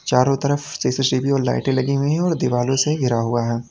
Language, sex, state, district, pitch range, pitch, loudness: Hindi, male, Uttar Pradesh, Lalitpur, 125-140 Hz, 135 Hz, -20 LUFS